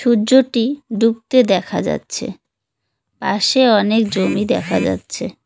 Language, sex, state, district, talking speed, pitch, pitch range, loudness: Bengali, female, West Bengal, Cooch Behar, 100 wpm, 230 Hz, 220-255 Hz, -16 LUFS